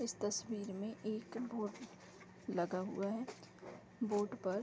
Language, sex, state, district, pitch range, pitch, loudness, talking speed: Hindi, female, Bihar, East Champaran, 200-230 Hz, 210 Hz, -42 LUFS, 145 wpm